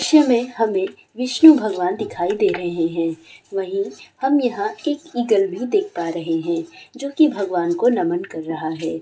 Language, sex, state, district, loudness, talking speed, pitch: Hindi, female, West Bengal, Kolkata, -20 LUFS, 180 wpm, 215 Hz